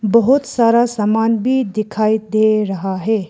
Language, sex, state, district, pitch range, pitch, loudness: Hindi, female, Arunachal Pradesh, Lower Dibang Valley, 210-230 Hz, 220 Hz, -16 LUFS